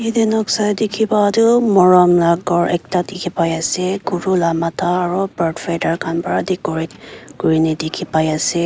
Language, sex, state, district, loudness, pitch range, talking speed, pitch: Nagamese, female, Nagaland, Kohima, -16 LUFS, 165-195 Hz, 140 wpm, 180 Hz